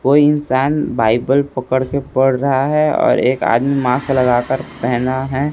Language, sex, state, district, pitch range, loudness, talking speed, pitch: Hindi, male, Chhattisgarh, Raipur, 125-140 Hz, -16 LUFS, 175 wpm, 130 Hz